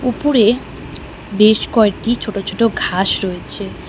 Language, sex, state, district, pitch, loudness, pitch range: Bengali, female, West Bengal, Alipurduar, 220 Hz, -16 LUFS, 200-230 Hz